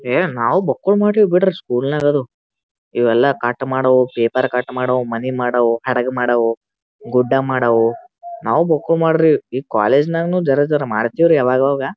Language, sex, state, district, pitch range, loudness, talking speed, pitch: Kannada, male, Karnataka, Gulbarga, 120-155 Hz, -16 LUFS, 150 wpm, 130 Hz